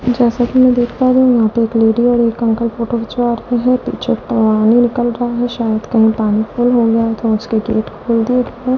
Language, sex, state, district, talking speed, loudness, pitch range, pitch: Hindi, female, Delhi, New Delhi, 230 wpm, -14 LUFS, 225-245 Hz, 235 Hz